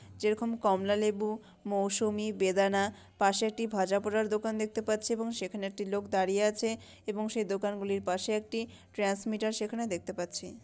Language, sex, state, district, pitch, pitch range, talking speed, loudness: Bengali, female, West Bengal, Malda, 210 Hz, 195-220 Hz, 140 wpm, -32 LUFS